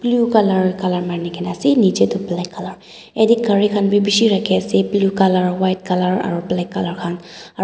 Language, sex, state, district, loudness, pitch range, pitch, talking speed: Nagamese, female, Nagaland, Dimapur, -17 LUFS, 180-205 Hz, 190 Hz, 195 wpm